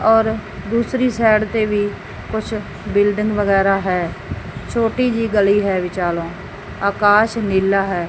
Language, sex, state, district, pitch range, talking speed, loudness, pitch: Punjabi, male, Punjab, Fazilka, 195-220 Hz, 125 wpm, -18 LUFS, 205 Hz